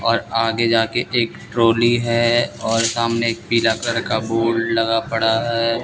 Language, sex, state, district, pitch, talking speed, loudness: Hindi, male, Bihar, West Champaran, 115 Hz, 165 wpm, -18 LUFS